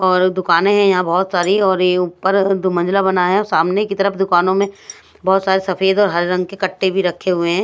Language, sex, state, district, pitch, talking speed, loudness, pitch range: Hindi, female, Odisha, Sambalpur, 185 Hz, 235 wpm, -16 LUFS, 180-195 Hz